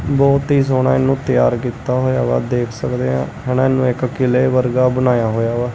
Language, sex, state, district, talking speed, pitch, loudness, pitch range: Punjabi, male, Punjab, Kapurthala, 200 wpm, 125 Hz, -16 LUFS, 115-130 Hz